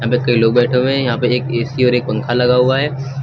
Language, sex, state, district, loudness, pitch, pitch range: Hindi, male, Uttar Pradesh, Lucknow, -15 LUFS, 125 Hz, 120-130 Hz